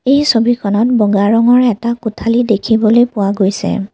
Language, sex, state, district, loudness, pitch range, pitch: Assamese, female, Assam, Kamrup Metropolitan, -12 LUFS, 205-240 Hz, 225 Hz